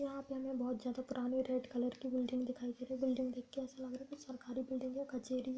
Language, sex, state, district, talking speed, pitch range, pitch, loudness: Hindi, female, Uttar Pradesh, Budaun, 280 wpm, 250-265 Hz, 255 Hz, -41 LUFS